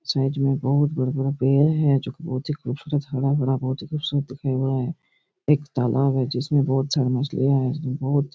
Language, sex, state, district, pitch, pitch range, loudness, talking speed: Hindi, male, Chhattisgarh, Raigarh, 135 Hz, 130-145 Hz, -23 LUFS, 215 wpm